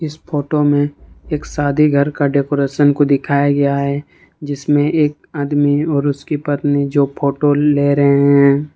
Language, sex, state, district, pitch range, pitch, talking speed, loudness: Hindi, male, Jharkhand, Ranchi, 140-145 Hz, 145 Hz, 155 wpm, -15 LUFS